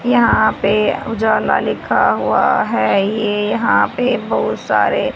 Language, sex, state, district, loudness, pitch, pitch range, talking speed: Hindi, female, Haryana, Rohtak, -15 LUFS, 210 Hz, 205-225 Hz, 130 wpm